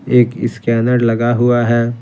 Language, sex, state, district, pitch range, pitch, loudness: Hindi, male, Bihar, Patna, 115-120 Hz, 120 Hz, -14 LUFS